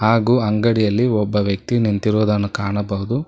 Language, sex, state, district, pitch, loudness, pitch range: Kannada, male, Karnataka, Bangalore, 105 Hz, -18 LUFS, 100-115 Hz